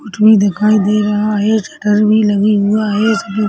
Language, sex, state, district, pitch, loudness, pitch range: Hindi, female, Chhattisgarh, Rajnandgaon, 210 Hz, -13 LUFS, 205-215 Hz